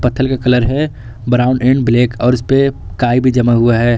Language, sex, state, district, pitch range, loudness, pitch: Hindi, male, Jharkhand, Garhwa, 120-130 Hz, -13 LUFS, 125 Hz